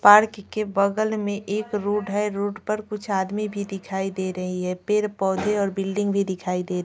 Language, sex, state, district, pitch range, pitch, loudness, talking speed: Hindi, female, Bihar, Patna, 190-210 Hz, 205 Hz, -24 LUFS, 200 wpm